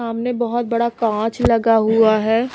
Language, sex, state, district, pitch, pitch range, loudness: Hindi, female, Chhattisgarh, Raipur, 230 Hz, 225-235 Hz, -17 LUFS